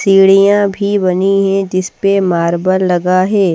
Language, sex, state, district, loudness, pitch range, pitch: Hindi, female, Bihar, Patna, -12 LUFS, 185-195 Hz, 195 Hz